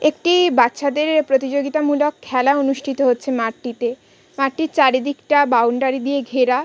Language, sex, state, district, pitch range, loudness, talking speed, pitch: Bengali, female, West Bengal, Kolkata, 255-295 Hz, -18 LUFS, 115 wpm, 275 Hz